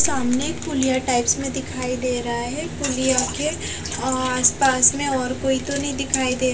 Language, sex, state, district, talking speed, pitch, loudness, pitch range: Hindi, female, Bihar, West Champaran, 175 wpm, 260 Hz, -21 LUFS, 255-275 Hz